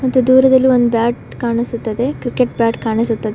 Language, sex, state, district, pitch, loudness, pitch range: Kannada, female, Karnataka, Koppal, 235 Hz, -15 LUFS, 230-255 Hz